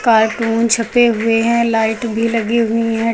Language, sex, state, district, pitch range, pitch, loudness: Hindi, female, Uttar Pradesh, Lucknow, 225-235 Hz, 230 Hz, -15 LUFS